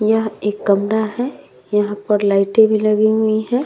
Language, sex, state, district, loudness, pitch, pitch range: Hindi, female, Bihar, Vaishali, -17 LUFS, 215 Hz, 205-220 Hz